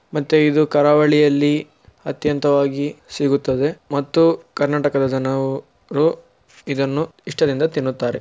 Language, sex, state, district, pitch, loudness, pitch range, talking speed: Kannada, male, Karnataka, Shimoga, 145 Hz, -18 LUFS, 140-150 Hz, 80 wpm